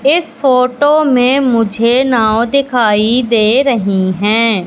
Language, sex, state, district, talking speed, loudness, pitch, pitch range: Hindi, female, Madhya Pradesh, Katni, 115 wpm, -11 LUFS, 245 Hz, 220-270 Hz